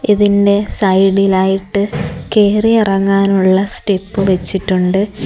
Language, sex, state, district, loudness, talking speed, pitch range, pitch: Malayalam, female, Kerala, Kollam, -13 LUFS, 105 wpm, 190-205 Hz, 195 Hz